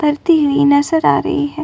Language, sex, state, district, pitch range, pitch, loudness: Hindi, female, Uttar Pradesh, Muzaffarnagar, 285-310 Hz, 295 Hz, -14 LUFS